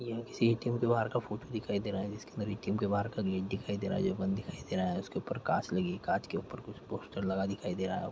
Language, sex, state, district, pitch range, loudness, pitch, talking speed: Hindi, male, Chhattisgarh, Jashpur, 95-115 Hz, -35 LUFS, 100 Hz, 280 wpm